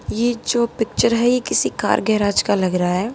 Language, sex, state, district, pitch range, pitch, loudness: Hindi, female, Haryana, Charkhi Dadri, 200-235 Hz, 225 Hz, -18 LUFS